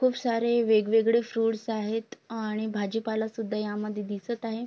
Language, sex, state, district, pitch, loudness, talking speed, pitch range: Marathi, female, Maharashtra, Sindhudurg, 225 Hz, -28 LUFS, 155 wpm, 215-230 Hz